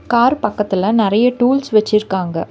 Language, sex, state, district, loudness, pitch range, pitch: Tamil, female, Tamil Nadu, Nilgiris, -15 LUFS, 200-240 Hz, 215 Hz